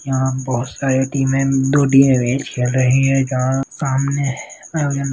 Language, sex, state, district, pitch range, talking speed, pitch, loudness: Hindi, male, Bihar, Jahanabad, 130-135 Hz, 45 wpm, 135 Hz, -17 LUFS